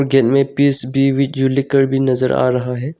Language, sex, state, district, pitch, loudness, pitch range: Hindi, male, Arunachal Pradesh, Longding, 135 Hz, -16 LUFS, 130-140 Hz